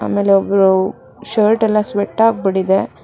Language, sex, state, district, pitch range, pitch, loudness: Kannada, female, Karnataka, Bangalore, 195-215 Hz, 200 Hz, -15 LUFS